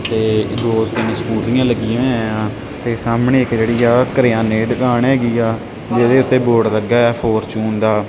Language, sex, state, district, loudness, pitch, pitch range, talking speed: Punjabi, male, Punjab, Kapurthala, -15 LUFS, 115 Hz, 110-120 Hz, 185 wpm